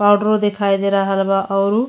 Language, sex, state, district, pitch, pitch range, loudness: Bhojpuri, female, Uttar Pradesh, Deoria, 200 Hz, 195-205 Hz, -17 LUFS